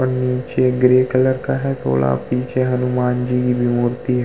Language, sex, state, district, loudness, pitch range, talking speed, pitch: Hindi, male, Uttar Pradesh, Muzaffarnagar, -18 LUFS, 125-130 Hz, 195 wpm, 125 Hz